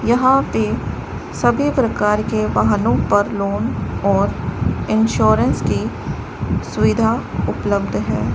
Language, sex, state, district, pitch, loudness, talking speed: Hindi, male, Rajasthan, Bikaner, 200 Hz, -18 LUFS, 100 wpm